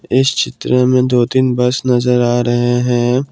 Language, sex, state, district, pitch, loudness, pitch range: Hindi, male, Assam, Kamrup Metropolitan, 125 Hz, -14 LUFS, 120-130 Hz